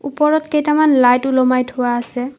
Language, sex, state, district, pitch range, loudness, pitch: Assamese, female, Assam, Kamrup Metropolitan, 250-300 Hz, -15 LUFS, 260 Hz